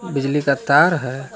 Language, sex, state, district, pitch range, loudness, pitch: Hindi, male, Jharkhand, Palamu, 135-160 Hz, -17 LUFS, 140 Hz